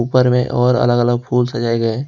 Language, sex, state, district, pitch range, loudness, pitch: Hindi, male, Jharkhand, Ranchi, 120-125 Hz, -16 LUFS, 120 Hz